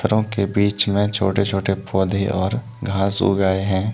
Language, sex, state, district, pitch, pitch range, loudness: Hindi, male, Jharkhand, Deoghar, 100 Hz, 95-105 Hz, -20 LUFS